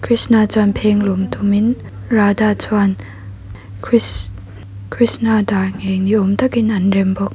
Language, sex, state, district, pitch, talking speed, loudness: Mizo, female, Mizoram, Aizawl, 200 Hz, 145 wpm, -15 LUFS